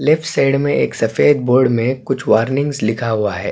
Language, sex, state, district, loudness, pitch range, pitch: Hindi, male, Chhattisgarh, Korba, -16 LUFS, 115-140 Hz, 130 Hz